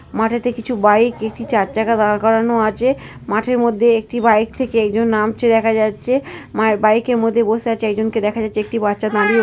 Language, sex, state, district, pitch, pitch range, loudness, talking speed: Bengali, female, West Bengal, North 24 Parganas, 225 Hz, 215-235 Hz, -17 LUFS, 190 wpm